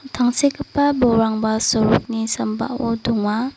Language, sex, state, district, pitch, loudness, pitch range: Garo, female, Meghalaya, West Garo Hills, 230 Hz, -19 LUFS, 220-255 Hz